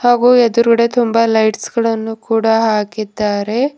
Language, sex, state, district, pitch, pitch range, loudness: Kannada, female, Karnataka, Bidar, 225 Hz, 220-235 Hz, -14 LUFS